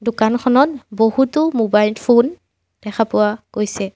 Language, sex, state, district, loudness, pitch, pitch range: Assamese, female, Assam, Sonitpur, -16 LUFS, 225 Hz, 210-260 Hz